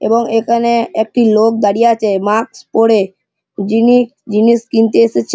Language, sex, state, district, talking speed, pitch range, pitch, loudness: Bengali, male, West Bengal, Malda, 135 wpm, 210-235 Hz, 225 Hz, -12 LUFS